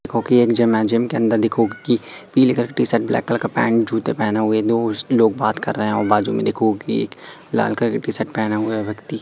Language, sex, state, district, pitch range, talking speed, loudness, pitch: Hindi, male, Madhya Pradesh, Katni, 110-115 Hz, 260 wpm, -19 LUFS, 110 Hz